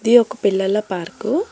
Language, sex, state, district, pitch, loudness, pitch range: Telugu, female, Telangana, Hyderabad, 215 Hz, -19 LUFS, 195-240 Hz